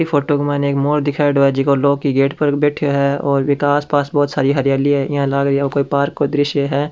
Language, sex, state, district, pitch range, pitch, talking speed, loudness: Rajasthani, male, Rajasthan, Churu, 140-145 Hz, 140 Hz, 260 wpm, -16 LUFS